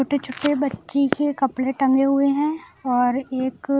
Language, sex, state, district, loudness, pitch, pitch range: Hindi, female, Bihar, Kaimur, -21 LUFS, 275 Hz, 260-285 Hz